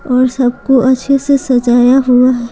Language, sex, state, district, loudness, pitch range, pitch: Hindi, female, Bihar, Patna, -11 LUFS, 245-270 Hz, 255 Hz